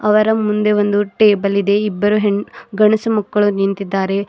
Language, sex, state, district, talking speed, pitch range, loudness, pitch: Kannada, female, Karnataka, Bidar, 140 wpm, 200-210 Hz, -15 LUFS, 205 Hz